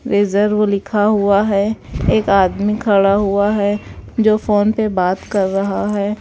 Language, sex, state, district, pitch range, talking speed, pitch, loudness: Hindi, female, Bihar, West Champaran, 200-210 Hz, 155 wpm, 205 Hz, -16 LUFS